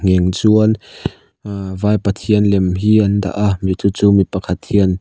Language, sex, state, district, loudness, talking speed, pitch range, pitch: Mizo, male, Mizoram, Aizawl, -15 LUFS, 165 wpm, 95-105 Hz, 100 Hz